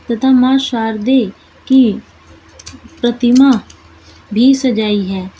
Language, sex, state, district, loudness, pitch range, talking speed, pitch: Hindi, female, Uttar Pradesh, Shamli, -13 LUFS, 195-260 Hz, 90 wpm, 235 Hz